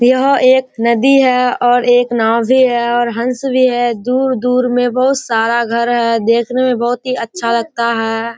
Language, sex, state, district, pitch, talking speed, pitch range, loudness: Hindi, female, Bihar, Kishanganj, 245 Hz, 185 wpm, 235-255 Hz, -13 LUFS